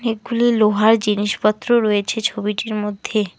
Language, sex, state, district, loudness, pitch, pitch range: Bengali, female, West Bengal, Alipurduar, -18 LUFS, 215 Hz, 210-225 Hz